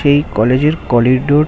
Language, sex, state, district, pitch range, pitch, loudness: Bengali, male, West Bengal, Kolkata, 125-150 Hz, 145 Hz, -13 LUFS